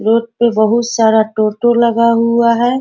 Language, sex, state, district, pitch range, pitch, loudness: Hindi, female, Bihar, Bhagalpur, 220-235 Hz, 230 Hz, -12 LUFS